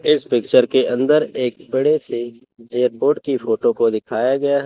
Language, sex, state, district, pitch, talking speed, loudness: Hindi, male, Chandigarh, Chandigarh, 140 Hz, 180 wpm, -18 LUFS